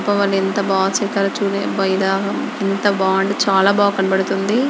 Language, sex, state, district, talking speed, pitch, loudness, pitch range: Telugu, female, Andhra Pradesh, Guntur, 125 wpm, 195 Hz, -17 LUFS, 195-200 Hz